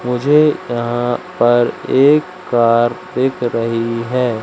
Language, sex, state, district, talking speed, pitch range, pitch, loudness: Hindi, male, Madhya Pradesh, Katni, 110 wpm, 120-130 Hz, 120 Hz, -15 LUFS